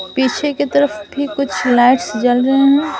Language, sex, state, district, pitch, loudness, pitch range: Hindi, female, Bihar, Patna, 265 Hz, -15 LUFS, 245-285 Hz